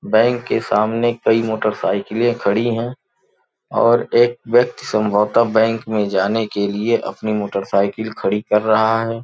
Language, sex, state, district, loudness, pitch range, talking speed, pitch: Hindi, male, Uttar Pradesh, Gorakhpur, -18 LUFS, 105-115 Hz, 150 wpm, 110 Hz